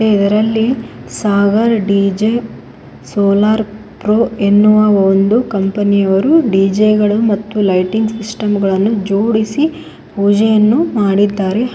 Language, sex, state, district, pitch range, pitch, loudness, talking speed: Kannada, female, Karnataka, Koppal, 200-220 Hz, 210 Hz, -13 LUFS, 95 wpm